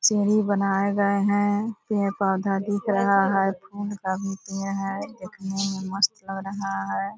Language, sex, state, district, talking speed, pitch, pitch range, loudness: Hindi, female, Bihar, Purnia, 125 wpm, 195 Hz, 195-205 Hz, -25 LUFS